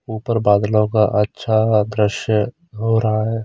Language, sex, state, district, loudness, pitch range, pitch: Hindi, male, Chandigarh, Chandigarh, -18 LUFS, 105-110 Hz, 110 Hz